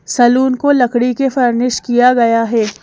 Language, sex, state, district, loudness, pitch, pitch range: Hindi, female, Madhya Pradesh, Bhopal, -13 LUFS, 245 Hz, 235-255 Hz